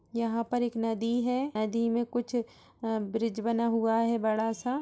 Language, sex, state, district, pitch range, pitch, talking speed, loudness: Hindi, female, Uttar Pradesh, Budaun, 225-240 Hz, 230 Hz, 175 wpm, -30 LUFS